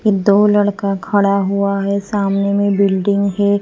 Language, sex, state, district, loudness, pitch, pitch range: Hindi, female, Punjab, Pathankot, -15 LUFS, 200 Hz, 200-205 Hz